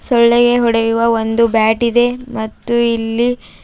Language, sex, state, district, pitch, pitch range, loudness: Kannada, female, Karnataka, Bidar, 235 Hz, 225-240 Hz, -14 LUFS